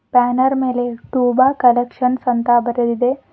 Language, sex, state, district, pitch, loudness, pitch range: Kannada, female, Karnataka, Bidar, 245 Hz, -16 LUFS, 245-255 Hz